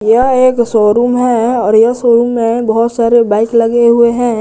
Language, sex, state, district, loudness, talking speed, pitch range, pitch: Hindi, male, Jharkhand, Garhwa, -10 LUFS, 190 wpm, 225-240 Hz, 235 Hz